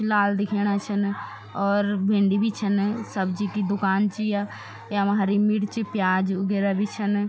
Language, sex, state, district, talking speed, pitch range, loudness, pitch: Garhwali, female, Uttarakhand, Tehri Garhwal, 155 wpm, 200-205 Hz, -24 LUFS, 205 Hz